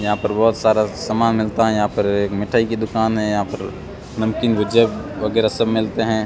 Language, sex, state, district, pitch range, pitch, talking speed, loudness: Hindi, male, Rajasthan, Bikaner, 105-115 Hz, 110 Hz, 210 wpm, -19 LUFS